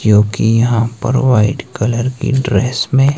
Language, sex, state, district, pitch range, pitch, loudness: Hindi, male, Himachal Pradesh, Shimla, 110-130 Hz, 120 Hz, -14 LUFS